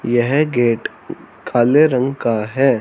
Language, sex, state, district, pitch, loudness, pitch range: Hindi, male, Haryana, Charkhi Dadri, 125 Hz, -16 LUFS, 120-135 Hz